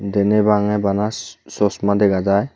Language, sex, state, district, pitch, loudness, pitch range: Chakma, male, Tripura, Unakoti, 105 Hz, -18 LUFS, 100-105 Hz